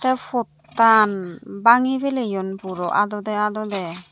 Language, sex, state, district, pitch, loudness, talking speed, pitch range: Chakma, female, Tripura, Unakoti, 210 Hz, -20 LUFS, 100 wpm, 190-235 Hz